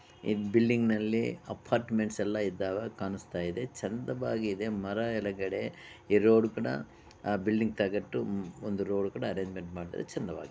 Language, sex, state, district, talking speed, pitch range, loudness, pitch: Kannada, male, Karnataka, Bellary, 125 wpm, 100-110 Hz, -32 LUFS, 105 Hz